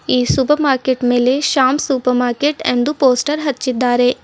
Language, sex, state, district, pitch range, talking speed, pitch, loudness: Kannada, female, Karnataka, Bidar, 245-285 Hz, 140 wpm, 260 Hz, -15 LUFS